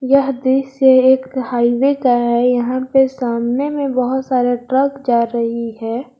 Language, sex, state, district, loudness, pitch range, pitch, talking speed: Hindi, female, Jharkhand, Garhwa, -16 LUFS, 240-265 Hz, 255 Hz, 155 wpm